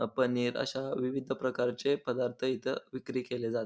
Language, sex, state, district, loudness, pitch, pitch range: Marathi, male, Maharashtra, Pune, -33 LUFS, 130 Hz, 125-130 Hz